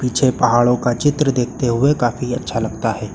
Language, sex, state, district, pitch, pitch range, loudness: Hindi, male, Uttar Pradesh, Lucknow, 125 Hz, 120-130 Hz, -17 LUFS